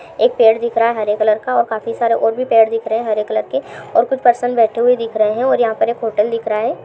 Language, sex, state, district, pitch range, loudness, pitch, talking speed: Hindi, female, Chhattisgarh, Rajnandgaon, 220-235 Hz, -16 LUFS, 230 Hz, 325 wpm